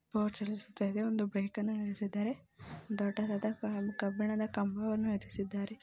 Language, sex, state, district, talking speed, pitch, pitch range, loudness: Kannada, female, Karnataka, Belgaum, 70 wpm, 210 Hz, 205-215 Hz, -36 LUFS